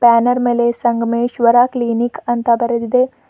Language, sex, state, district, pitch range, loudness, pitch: Kannada, female, Karnataka, Bidar, 235-245 Hz, -15 LUFS, 240 Hz